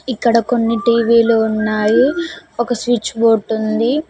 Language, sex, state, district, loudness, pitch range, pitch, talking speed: Telugu, female, Telangana, Mahabubabad, -15 LUFS, 225-245 Hz, 230 Hz, 130 wpm